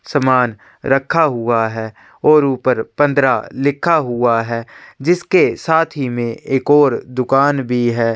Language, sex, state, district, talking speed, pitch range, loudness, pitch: Hindi, male, Chhattisgarh, Sukma, 140 wpm, 120-145 Hz, -16 LUFS, 130 Hz